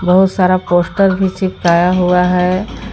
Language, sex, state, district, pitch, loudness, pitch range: Hindi, female, Jharkhand, Garhwa, 185 Hz, -13 LUFS, 180-190 Hz